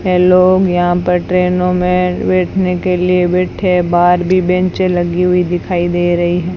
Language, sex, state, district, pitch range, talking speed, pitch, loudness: Hindi, female, Rajasthan, Bikaner, 175-180 Hz, 180 wpm, 180 Hz, -13 LUFS